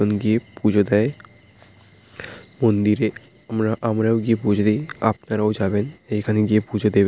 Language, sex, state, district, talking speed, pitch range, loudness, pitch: Bengali, male, West Bengal, Paschim Medinipur, 125 wpm, 105-110 Hz, -21 LUFS, 105 Hz